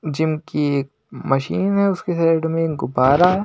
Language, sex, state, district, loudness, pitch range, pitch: Hindi, male, Maharashtra, Washim, -19 LUFS, 140-180 Hz, 160 Hz